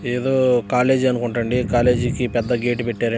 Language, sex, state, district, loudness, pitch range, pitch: Telugu, male, Andhra Pradesh, Guntur, -19 LUFS, 120-125 Hz, 125 Hz